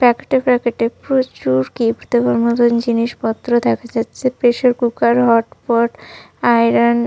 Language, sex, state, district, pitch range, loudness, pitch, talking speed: Bengali, female, Jharkhand, Sahebganj, 230-245 Hz, -16 LUFS, 235 Hz, 120 wpm